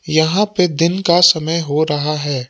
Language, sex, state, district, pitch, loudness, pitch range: Hindi, male, Jharkhand, Palamu, 160 Hz, -15 LUFS, 150-175 Hz